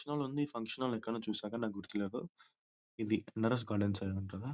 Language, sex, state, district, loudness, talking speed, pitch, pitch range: Telugu, male, Telangana, Nalgonda, -38 LUFS, 185 wpm, 110 Hz, 105-125 Hz